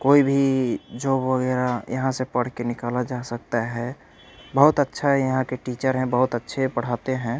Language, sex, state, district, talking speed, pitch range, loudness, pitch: Hindi, male, Bihar, Kaimur, 185 wpm, 120-135 Hz, -23 LUFS, 130 Hz